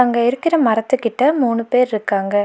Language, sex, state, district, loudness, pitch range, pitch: Tamil, female, Tamil Nadu, Nilgiris, -17 LUFS, 220-260 Hz, 240 Hz